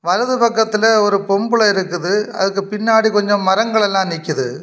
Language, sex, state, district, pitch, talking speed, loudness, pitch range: Tamil, male, Tamil Nadu, Kanyakumari, 205 Hz, 140 wpm, -15 LUFS, 195-220 Hz